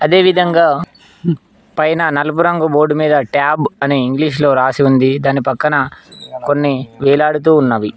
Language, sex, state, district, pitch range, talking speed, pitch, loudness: Telugu, male, Telangana, Mahabubabad, 140-160 Hz, 120 wpm, 150 Hz, -13 LUFS